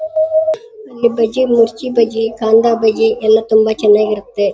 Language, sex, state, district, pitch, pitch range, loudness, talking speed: Kannada, female, Karnataka, Dharwad, 225 Hz, 220-250 Hz, -13 LUFS, 120 wpm